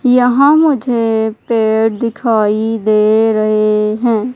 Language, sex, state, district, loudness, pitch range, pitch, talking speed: Hindi, female, Madhya Pradesh, Umaria, -13 LUFS, 215-240 Hz, 225 Hz, 95 wpm